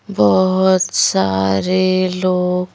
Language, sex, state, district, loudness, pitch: Hindi, female, Madhya Pradesh, Bhopal, -15 LUFS, 180 Hz